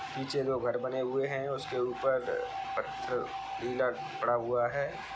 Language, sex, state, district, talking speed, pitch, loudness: Hindi, male, Bihar, Sitamarhi, 165 wpm, 135 Hz, -33 LUFS